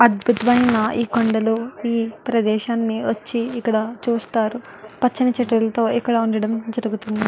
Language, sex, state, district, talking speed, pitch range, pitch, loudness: Telugu, female, Andhra Pradesh, Guntur, 105 wpm, 220-240 Hz, 230 Hz, -20 LUFS